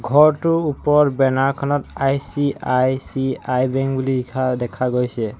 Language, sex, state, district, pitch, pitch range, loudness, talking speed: Assamese, male, Assam, Sonitpur, 135 Hz, 125-140 Hz, -19 LUFS, 110 wpm